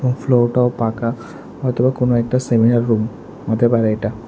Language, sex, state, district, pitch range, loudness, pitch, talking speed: Bengali, male, Tripura, West Tripura, 115-125 Hz, -17 LUFS, 120 Hz, 155 wpm